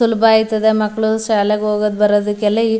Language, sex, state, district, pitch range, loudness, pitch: Kannada, female, Karnataka, Mysore, 210-220 Hz, -15 LUFS, 215 Hz